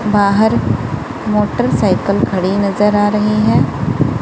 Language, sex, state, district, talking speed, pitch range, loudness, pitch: Hindi, female, Punjab, Kapurthala, 100 wpm, 140-210 Hz, -14 LUFS, 200 Hz